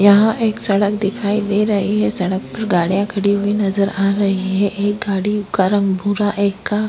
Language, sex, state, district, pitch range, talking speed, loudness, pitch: Hindi, female, Maharashtra, Aurangabad, 195-210 Hz, 210 wpm, -17 LUFS, 200 Hz